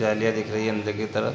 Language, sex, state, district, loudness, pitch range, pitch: Hindi, male, Chhattisgarh, Raigarh, -26 LUFS, 105-110 Hz, 110 Hz